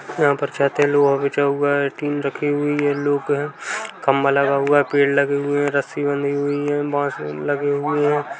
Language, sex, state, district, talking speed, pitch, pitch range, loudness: Hindi, male, Chhattisgarh, Kabirdham, 220 wpm, 145 Hz, 140-145 Hz, -20 LUFS